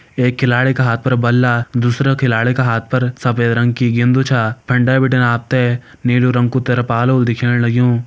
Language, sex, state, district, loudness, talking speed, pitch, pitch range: Hindi, male, Uttarakhand, Uttarkashi, -15 LUFS, 200 wpm, 125 Hz, 120-130 Hz